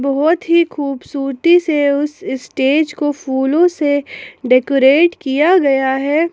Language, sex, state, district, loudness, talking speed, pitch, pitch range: Hindi, female, Jharkhand, Palamu, -14 LUFS, 125 wpm, 285 Hz, 270-320 Hz